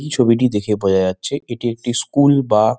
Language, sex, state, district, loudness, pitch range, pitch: Bengali, male, West Bengal, Malda, -17 LUFS, 105-135 Hz, 120 Hz